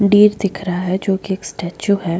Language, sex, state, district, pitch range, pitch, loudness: Hindi, female, Goa, North and South Goa, 180-200 Hz, 190 Hz, -18 LUFS